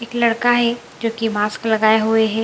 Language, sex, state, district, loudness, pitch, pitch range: Hindi, female, Bihar, Samastipur, -18 LUFS, 225 Hz, 220-235 Hz